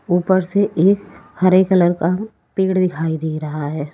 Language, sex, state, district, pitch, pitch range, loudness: Hindi, female, Uttar Pradesh, Lalitpur, 180 Hz, 160-190 Hz, -17 LUFS